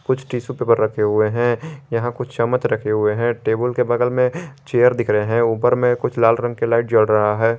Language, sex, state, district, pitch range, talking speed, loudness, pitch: Hindi, male, Jharkhand, Garhwa, 115-125 Hz, 235 wpm, -18 LUFS, 120 Hz